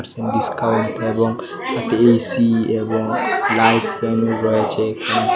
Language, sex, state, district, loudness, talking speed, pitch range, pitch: Bengali, male, Tripura, West Tripura, -18 LUFS, 100 wpm, 110-115 Hz, 110 Hz